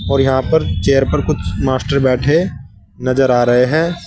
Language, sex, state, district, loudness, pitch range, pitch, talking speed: Hindi, male, Uttar Pradesh, Saharanpur, -15 LUFS, 125-140 Hz, 130 Hz, 175 wpm